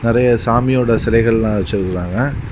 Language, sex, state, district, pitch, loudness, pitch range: Tamil, male, Tamil Nadu, Kanyakumari, 115 Hz, -15 LUFS, 110-120 Hz